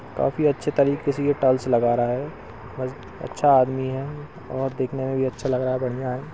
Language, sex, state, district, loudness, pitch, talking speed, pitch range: Hindi, male, Uttar Pradesh, Etah, -23 LUFS, 130 Hz, 210 wpm, 130-140 Hz